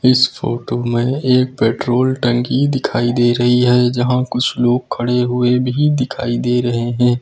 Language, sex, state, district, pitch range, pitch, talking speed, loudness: Hindi, male, Uttar Pradesh, Lucknow, 120-125 Hz, 125 Hz, 165 wpm, -16 LUFS